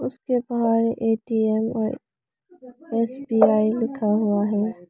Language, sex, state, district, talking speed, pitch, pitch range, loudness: Hindi, female, Arunachal Pradesh, Lower Dibang Valley, 100 wpm, 225 Hz, 215-245 Hz, -22 LUFS